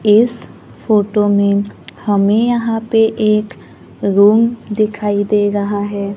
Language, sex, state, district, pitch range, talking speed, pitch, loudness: Hindi, female, Maharashtra, Gondia, 205-220 Hz, 115 wpm, 210 Hz, -14 LUFS